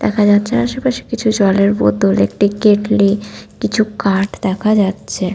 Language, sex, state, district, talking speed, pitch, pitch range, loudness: Bengali, female, West Bengal, Paschim Medinipur, 155 wpm, 205 Hz, 195-215 Hz, -15 LUFS